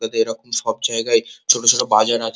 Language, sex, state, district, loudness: Bengali, male, West Bengal, Kolkata, -17 LUFS